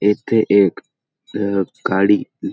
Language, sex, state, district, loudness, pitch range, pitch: Marathi, male, Maharashtra, Pune, -17 LUFS, 95-105 Hz, 100 Hz